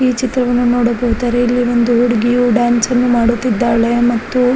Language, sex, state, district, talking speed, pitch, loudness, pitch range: Kannada, female, Karnataka, Raichur, 130 wpm, 240 Hz, -14 LUFS, 235-245 Hz